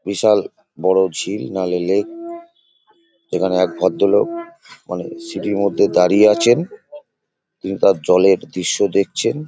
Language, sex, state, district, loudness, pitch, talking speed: Bengali, male, West Bengal, Paschim Medinipur, -17 LUFS, 105 Hz, 115 wpm